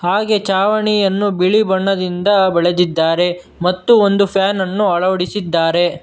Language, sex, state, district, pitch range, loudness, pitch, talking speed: Kannada, male, Karnataka, Bangalore, 180-205 Hz, -15 LUFS, 190 Hz, 90 wpm